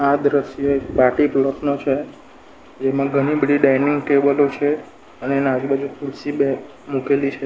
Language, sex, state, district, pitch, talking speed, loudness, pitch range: Gujarati, male, Gujarat, Valsad, 140 Hz, 160 wpm, -19 LUFS, 135-145 Hz